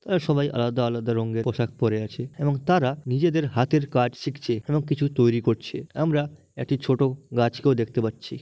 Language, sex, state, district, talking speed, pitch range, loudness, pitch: Bengali, male, West Bengal, Malda, 180 wpm, 120-145 Hz, -24 LUFS, 130 Hz